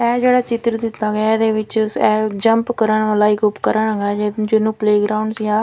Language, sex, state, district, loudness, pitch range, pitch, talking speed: Punjabi, female, Punjab, Fazilka, -17 LUFS, 210-225 Hz, 215 Hz, 190 wpm